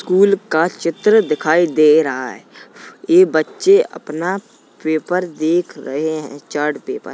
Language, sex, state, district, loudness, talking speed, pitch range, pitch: Hindi, male, Uttar Pradesh, Jalaun, -16 LUFS, 145 wpm, 155-205 Hz, 170 Hz